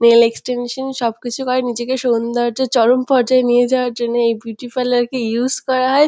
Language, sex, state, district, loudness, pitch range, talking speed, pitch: Bengali, female, West Bengal, Kolkata, -17 LUFS, 235-255 Hz, 175 wpm, 245 Hz